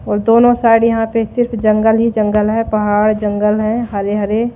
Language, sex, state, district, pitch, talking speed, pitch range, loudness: Hindi, female, Odisha, Malkangiri, 220 Hz, 195 wpm, 210-230 Hz, -14 LUFS